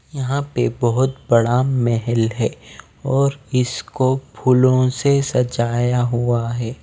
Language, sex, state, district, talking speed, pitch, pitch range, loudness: Hindi, male, Bihar, Patna, 115 wpm, 125 Hz, 120-135 Hz, -19 LUFS